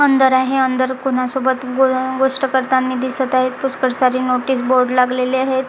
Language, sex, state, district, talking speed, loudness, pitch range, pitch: Marathi, female, Maharashtra, Gondia, 145 wpm, -16 LUFS, 255-265 Hz, 260 Hz